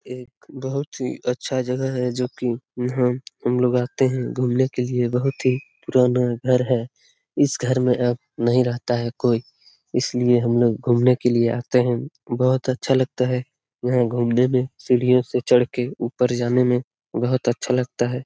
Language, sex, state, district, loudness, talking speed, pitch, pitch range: Hindi, male, Bihar, Lakhisarai, -21 LUFS, 180 wpm, 125 Hz, 120-130 Hz